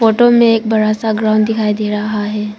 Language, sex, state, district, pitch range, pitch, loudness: Hindi, female, Arunachal Pradesh, Papum Pare, 210-225 Hz, 215 Hz, -13 LUFS